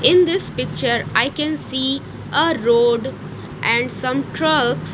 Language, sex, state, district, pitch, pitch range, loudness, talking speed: English, female, Odisha, Nuapada, 275 Hz, 255-315 Hz, -18 LUFS, 120 wpm